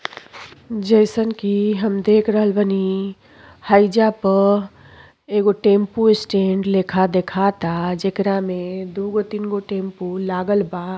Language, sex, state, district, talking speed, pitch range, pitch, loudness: Bhojpuri, female, Uttar Pradesh, Deoria, 115 wpm, 190-210 Hz, 200 Hz, -18 LUFS